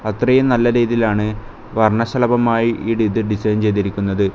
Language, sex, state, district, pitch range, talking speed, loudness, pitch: Malayalam, male, Kerala, Kasaragod, 105-120 Hz, 110 wpm, -17 LUFS, 110 Hz